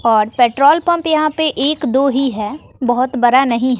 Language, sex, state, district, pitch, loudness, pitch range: Hindi, female, Bihar, West Champaran, 265 Hz, -14 LUFS, 245-300 Hz